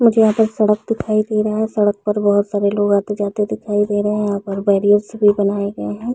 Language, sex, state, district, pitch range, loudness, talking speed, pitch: Hindi, female, Chhattisgarh, Rajnandgaon, 205-215 Hz, -17 LUFS, 245 wpm, 205 Hz